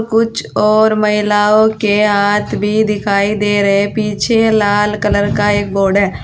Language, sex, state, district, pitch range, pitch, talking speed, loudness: Hindi, female, Uttar Pradesh, Saharanpur, 205-215 Hz, 210 Hz, 155 wpm, -13 LUFS